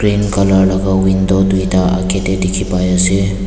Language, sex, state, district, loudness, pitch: Nagamese, male, Nagaland, Dimapur, -13 LUFS, 95 Hz